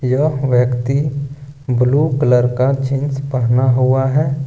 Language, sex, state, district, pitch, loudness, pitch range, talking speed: Hindi, male, Jharkhand, Ranchi, 135 Hz, -16 LUFS, 125-140 Hz, 120 wpm